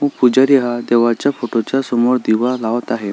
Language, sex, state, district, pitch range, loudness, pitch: Marathi, male, Maharashtra, Sindhudurg, 120-130 Hz, -15 LUFS, 120 Hz